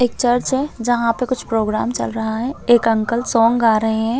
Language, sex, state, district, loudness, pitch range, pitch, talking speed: Hindi, female, Chhattisgarh, Bastar, -18 LUFS, 225-245 Hz, 235 Hz, 215 wpm